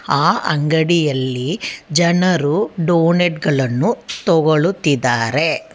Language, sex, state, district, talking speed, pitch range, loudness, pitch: Kannada, female, Karnataka, Bangalore, 65 wpm, 145-170 Hz, -16 LUFS, 160 Hz